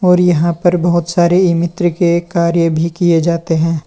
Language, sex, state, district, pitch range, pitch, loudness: Hindi, male, Uttar Pradesh, Lalitpur, 170-175 Hz, 170 Hz, -13 LUFS